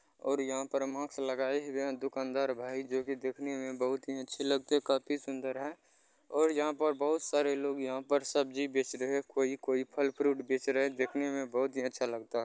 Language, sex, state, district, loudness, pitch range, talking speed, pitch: Maithili, male, Bihar, Muzaffarpur, -34 LUFS, 130-140 Hz, 200 wpm, 135 Hz